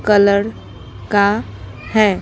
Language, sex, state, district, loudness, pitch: Hindi, female, Bihar, Patna, -16 LUFS, 190 Hz